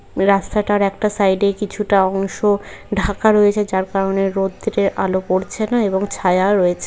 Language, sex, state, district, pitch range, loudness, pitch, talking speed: Bengali, female, West Bengal, North 24 Parganas, 190-210 Hz, -17 LUFS, 200 Hz, 155 wpm